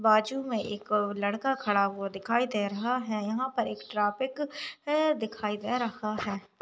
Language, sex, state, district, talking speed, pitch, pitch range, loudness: Hindi, female, Maharashtra, Pune, 165 wpm, 215 Hz, 205-255 Hz, -30 LUFS